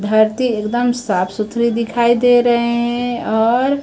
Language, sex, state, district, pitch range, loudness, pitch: Hindi, male, Chhattisgarh, Raipur, 220-245 Hz, -16 LUFS, 235 Hz